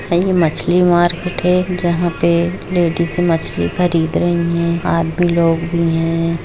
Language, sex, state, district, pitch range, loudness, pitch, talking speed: Hindi, female, Jharkhand, Jamtara, 165-175 Hz, -16 LUFS, 170 Hz, 160 wpm